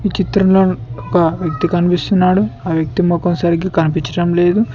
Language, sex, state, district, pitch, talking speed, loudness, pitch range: Telugu, male, Telangana, Mahabubabad, 175 Hz, 140 wpm, -15 LUFS, 165-190 Hz